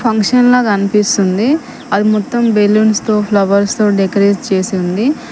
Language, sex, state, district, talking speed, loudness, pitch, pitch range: Telugu, female, Telangana, Mahabubabad, 125 wpm, -12 LUFS, 210 Hz, 200-225 Hz